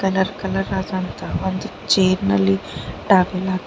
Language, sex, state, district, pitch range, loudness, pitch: Kannada, female, Karnataka, Bidar, 185-190 Hz, -20 LUFS, 190 Hz